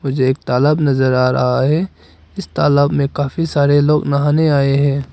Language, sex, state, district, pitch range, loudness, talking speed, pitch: Hindi, male, Arunachal Pradesh, Papum Pare, 135-150 Hz, -15 LUFS, 185 wpm, 140 Hz